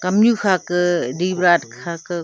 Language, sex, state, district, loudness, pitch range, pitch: Wancho, female, Arunachal Pradesh, Longding, -18 LUFS, 175-185 Hz, 175 Hz